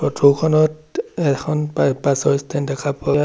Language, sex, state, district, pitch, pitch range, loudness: Assamese, male, Assam, Sonitpur, 145 Hz, 140-155 Hz, -19 LUFS